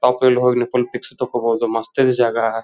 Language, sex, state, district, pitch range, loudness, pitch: Kannada, male, Karnataka, Dharwad, 115-125 Hz, -18 LUFS, 120 Hz